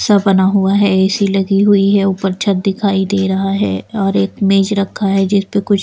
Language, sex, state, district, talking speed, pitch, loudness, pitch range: Hindi, female, Bihar, Patna, 225 wpm, 195 Hz, -14 LUFS, 195-200 Hz